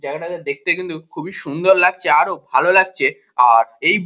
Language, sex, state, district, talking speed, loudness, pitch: Bengali, male, West Bengal, Kolkata, 145 wpm, -15 LUFS, 185 Hz